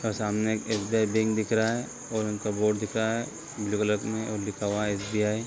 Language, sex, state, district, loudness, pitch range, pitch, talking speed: Hindi, male, Bihar, East Champaran, -28 LUFS, 105-110 Hz, 110 Hz, 250 wpm